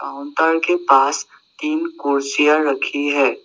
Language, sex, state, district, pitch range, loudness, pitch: Hindi, male, Assam, Sonitpur, 140-165 Hz, -18 LUFS, 145 Hz